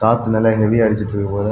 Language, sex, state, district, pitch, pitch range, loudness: Tamil, male, Tamil Nadu, Kanyakumari, 110 Hz, 105-110 Hz, -16 LUFS